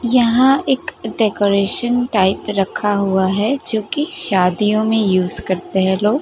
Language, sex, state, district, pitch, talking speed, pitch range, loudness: Hindi, female, Gujarat, Gandhinagar, 210 Hz, 135 wpm, 190-245 Hz, -15 LUFS